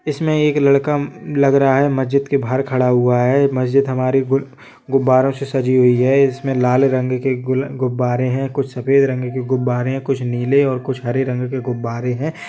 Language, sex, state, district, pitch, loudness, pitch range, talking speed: Hindi, male, Jharkhand, Jamtara, 130 Hz, -17 LUFS, 125-140 Hz, 195 wpm